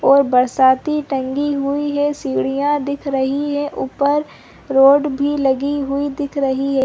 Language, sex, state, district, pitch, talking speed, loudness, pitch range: Hindi, female, Chhattisgarh, Balrampur, 280 Hz, 155 wpm, -17 LUFS, 270-290 Hz